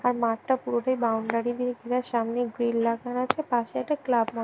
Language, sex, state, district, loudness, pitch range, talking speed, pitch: Bengali, male, West Bengal, Jhargram, -27 LUFS, 230-250 Hz, 200 wpm, 240 Hz